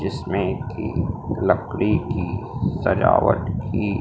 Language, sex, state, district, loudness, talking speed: Hindi, male, Madhya Pradesh, Umaria, -22 LUFS, 90 wpm